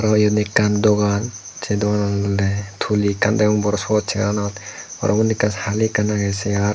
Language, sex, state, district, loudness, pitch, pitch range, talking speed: Chakma, male, Tripura, Dhalai, -19 LUFS, 105 Hz, 100-105 Hz, 185 wpm